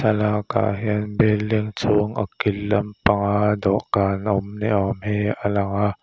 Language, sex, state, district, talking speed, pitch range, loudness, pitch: Mizo, male, Mizoram, Aizawl, 150 wpm, 100-105 Hz, -21 LUFS, 105 Hz